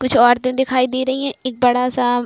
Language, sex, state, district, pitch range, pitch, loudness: Hindi, female, Uttar Pradesh, Budaun, 245-260 Hz, 255 Hz, -17 LUFS